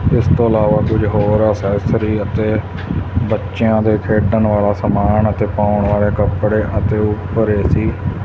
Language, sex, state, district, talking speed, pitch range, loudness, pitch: Punjabi, male, Punjab, Fazilka, 145 wpm, 100-110 Hz, -15 LUFS, 105 Hz